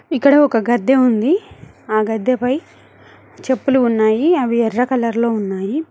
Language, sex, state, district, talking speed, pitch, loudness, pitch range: Telugu, female, Telangana, Mahabubabad, 130 wpm, 245 Hz, -16 LUFS, 225-275 Hz